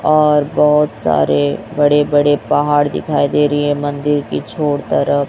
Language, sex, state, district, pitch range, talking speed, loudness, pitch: Hindi, male, Chhattisgarh, Raipur, 145-150 Hz, 160 wpm, -15 LUFS, 145 Hz